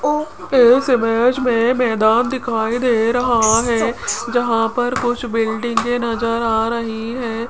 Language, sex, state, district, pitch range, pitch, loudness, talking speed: Hindi, female, Rajasthan, Jaipur, 225-245 Hz, 235 Hz, -17 LUFS, 130 wpm